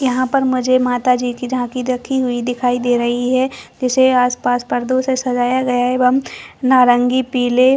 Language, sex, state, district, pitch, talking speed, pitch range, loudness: Hindi, female, Chhattisgarh, Bastar, 250 Hz, 180 wpm, 245-255 Hz, -16 LUFS